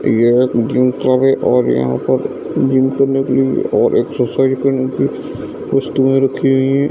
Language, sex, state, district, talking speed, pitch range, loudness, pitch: Hindi, male, Bihar, East Champaran, 155 wpm, 125-135 Hz, -14 LUFS, 130 Hz